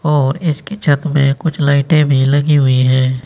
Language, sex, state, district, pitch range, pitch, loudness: Hindi, male, Uttar Pradesh, Saharanpur, 135-150 Hz, 145 Hz, -13 LUFS